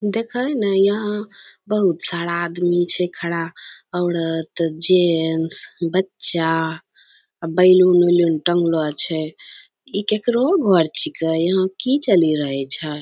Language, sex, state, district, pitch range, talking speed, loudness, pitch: Angika, female, Bihar, Bhagalpur, 165-190 Hz, 110 wpm, -18 LUFS, 175 Hz